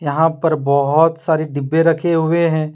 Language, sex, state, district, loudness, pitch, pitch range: Hindi, male, Jharkhand, Deoghar, -16 LUFS, 160 Hz, 155-165 Hz